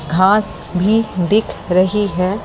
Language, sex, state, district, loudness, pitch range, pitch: Hindi, male, Delhi, New Delhi, -16 LUFS, 180-210 Hz, 195 Hz